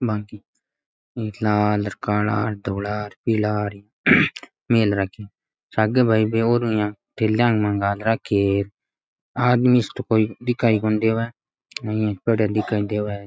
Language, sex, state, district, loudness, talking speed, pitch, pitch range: Rajasthani, male, Rajasthan, Nagaur, -21 LUFS, 55 wpm, 105 Hz, 105-115 Hz